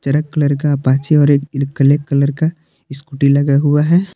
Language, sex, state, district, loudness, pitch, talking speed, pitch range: Hindi, male, Jharkhand, Palamu, -14 LUFS, 145 Hz, 175 wpm, 140-150 Hz